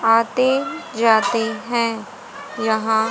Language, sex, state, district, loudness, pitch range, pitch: Hindi, female, Haryana, Jhajjar, -19 LUFS, 220-245 Hz, 230 Hz